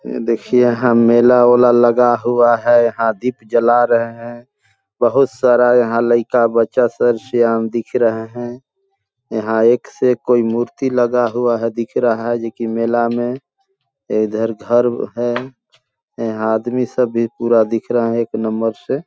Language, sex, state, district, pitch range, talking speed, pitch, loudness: Hindi, male, Chhattisgarh, Balrampur, 115-120 Hz, 165 wpm, 120 Hz, -15 LUFS